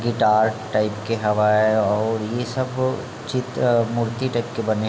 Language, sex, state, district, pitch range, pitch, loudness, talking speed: Chhattisgarhi, male, Chhattisgarh, Bilaspur, 110-120 Hz, 115 Hz, -21 LUFS, 160 wpm